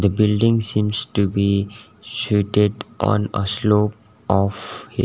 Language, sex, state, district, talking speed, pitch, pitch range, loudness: English, male, Sikkim, Gangtok, 120 wpm, 105 Hz, 100-105 Hz, -20 LUFS